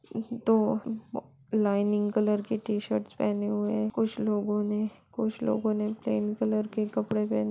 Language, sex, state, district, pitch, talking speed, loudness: Hindi, female, Bihar, Saran, 210 Hz, 150 wpm, -29 LUFS